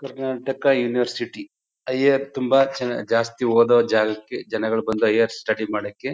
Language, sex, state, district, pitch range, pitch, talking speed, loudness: Kannada, male, Karnataka, Chamarajanagar, 110-135 Hz, 120 Hz, 135 wpm, -21 LUFS